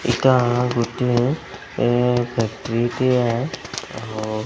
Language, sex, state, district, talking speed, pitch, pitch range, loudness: Odia, male, Odisha, Sambalpur, 95 wpm, 120 Hz, 115-130 Hz, -21 LUFS